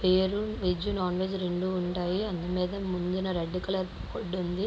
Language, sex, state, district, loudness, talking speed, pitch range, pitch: Telugu, female, Andhra Pradesh, Guntur, -31 LUFS, 155 wpm, 180-190 Hz, 185 Hz